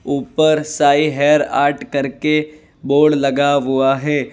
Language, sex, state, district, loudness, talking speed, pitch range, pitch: Hindi, male, Gujarat, Valsad, -16 LUFS, 125 wpm, 140-150 Hz, 145 Hz